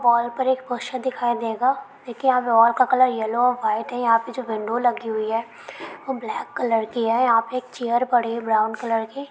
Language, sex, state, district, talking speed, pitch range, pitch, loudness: Hindi, female, Bihar, Kishanganj, 245 wpm, 230-255 Hz, 240 Hz, -22 LUFS